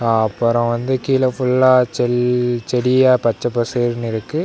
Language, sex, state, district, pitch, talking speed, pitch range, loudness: Tamil, male, Tamil Nadu, Namakkal, 120 Hz, 135 wpm, 120-130 Hz, -17 LUFS